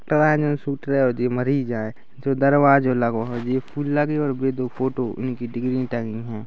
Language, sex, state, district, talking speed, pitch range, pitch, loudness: Hindi, male, Chhattisgarh, Rajnandgaon, 205 wpm, 120-140 Hz, 130 Hz, -22 LUFS